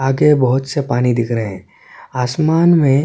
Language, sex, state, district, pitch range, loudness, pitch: Hindi, male, Chhattisgarh, Korba, 120-150 Hz, -15 LUFS, 135 Hz